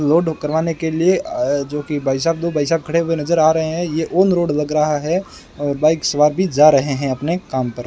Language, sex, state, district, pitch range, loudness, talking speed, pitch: Hindi, male, Rajasthan, Bikaner, 145-170 Hz, -17 LUFS, 250 wpm, 155 Hz